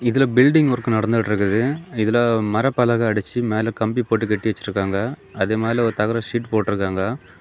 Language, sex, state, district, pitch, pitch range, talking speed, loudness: Tamil, male, Tamil Nadu, Kanyakumari, 115 Hz, 105-120 Hz, 160 wpm, -20 LUFS